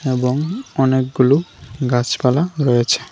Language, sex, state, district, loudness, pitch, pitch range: Bengali, male, Tripura, West Tripura, -17 LUFS, 130 Hz, 125-150 Hz